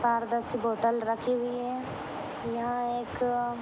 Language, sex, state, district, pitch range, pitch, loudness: Hindi, female, Jharkhand, Jamtara, 235-245 Hz, 240 Hz, -31 LUFS